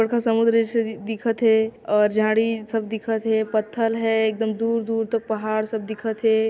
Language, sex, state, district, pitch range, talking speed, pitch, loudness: Chhattisgarhi, female, Chhattisgarh, Sarguja, 220-230 Hz, 185 wpm, 225 Hz, -22 LUFS